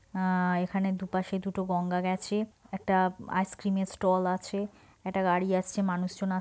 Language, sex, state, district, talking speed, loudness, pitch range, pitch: Bengali, female, West Bengal, Purulia, 150 wpm, -30 LUFS, 185-195 Hz, 185 Hz